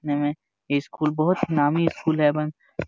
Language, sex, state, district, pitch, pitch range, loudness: Hindi, male, Jharkhand, Jamtara, 150 Hz, 145-160 Hz, -23 LUFS